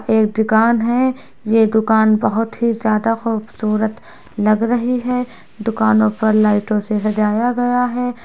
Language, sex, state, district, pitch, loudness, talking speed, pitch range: Hindi, female, Bihar, Muzaffarpur, 220 Hz, -16 LUFS, 140 wpm, 215-235 Hz